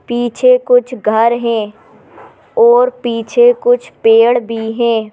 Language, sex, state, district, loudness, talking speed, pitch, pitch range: Hindi, female, Madhya Pradesh, Bhopal, -12 LUFS, 115 wpm, 235 Hz, 225-250 Hz